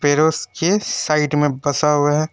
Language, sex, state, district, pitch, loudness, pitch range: Hindi, male, West Bengal, Alipurduar, 150 Hz, -18 LUFS, 145-155 Hz